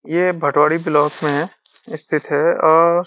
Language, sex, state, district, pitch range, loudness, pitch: Hindi, male, Uttarakhand, Uttarkashi, 150-175 Hz, -16 LUFS, 160 Hz